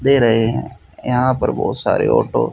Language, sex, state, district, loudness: Hindi, male, Haryana, Jhajjar, -17 LUFS